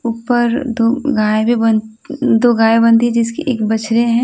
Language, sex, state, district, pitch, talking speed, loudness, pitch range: Hindi, female, Odisha, Nuapada, 230 Hz, 185 wpm, -14 LUFS, 225-240 Hz